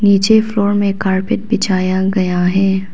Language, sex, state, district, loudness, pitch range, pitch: Hindi, female, Arunachal Pradesh, Papum Pare, -14 LUFS, 190-205 Hz, 195 Hz